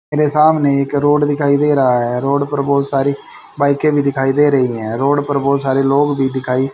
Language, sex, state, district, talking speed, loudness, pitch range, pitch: Hindi, male, Haryana, Rohtak, 230 wpm, -15 LUFS, 135-145 Hz, 140 Hz